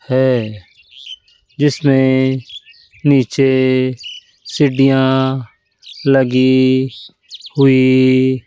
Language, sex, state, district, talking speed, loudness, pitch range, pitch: Hindi, male, Rajasthan, Jaipur, 50 wpm, -14 LUFS, 130-135 Hz, 130 Hz